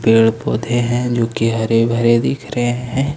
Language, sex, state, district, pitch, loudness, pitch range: Hindi, male, Jharkhand, Ranchi, 115 Hz, -16 LUFS, 115-120 Hz